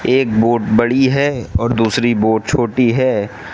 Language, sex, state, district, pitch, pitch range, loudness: Hindi, male, Mizoram, Aizawl, 120 Hz, 110-130 Hz, -15 LUFS